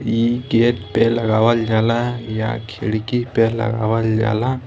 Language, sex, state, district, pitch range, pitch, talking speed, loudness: Bhojpuri, male, Bihar, East Champaran, 110-120 Hz, 115 Hz, 130 wpm, -18 LUFS